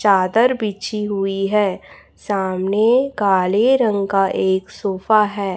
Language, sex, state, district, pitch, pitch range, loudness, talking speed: Hindi, female, Chhattisgarh, Raipur, 200 Hz, 190-215 Hz, -18 LUFS, 120 wpm